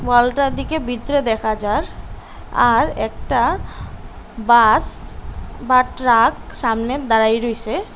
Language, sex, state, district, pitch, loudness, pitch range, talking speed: Bengali, female, Assam, Hailakandi, 240 Hz, -17 LUFS, 225-255 Hz, 100 wpm